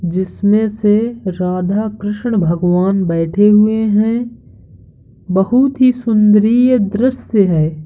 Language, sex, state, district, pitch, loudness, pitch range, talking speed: Hindi, male, Uttar Pradesh, Hamirpur, 210 Hz, -14 LUFS, 185-225 Hz, 100 wpm